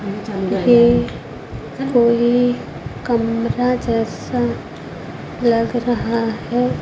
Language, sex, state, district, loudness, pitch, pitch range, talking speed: Hindi, female, Chhattisgarh, Raipur, -18 LUFS, 235 Hz, 230-245 Hz, 60 wpm